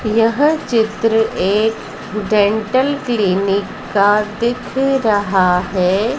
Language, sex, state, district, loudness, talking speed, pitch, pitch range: Hindi, female, Madhya Pradesh, Dhar, -16 LUFS, 85 wpm, 215 Hz, 205-235 Hz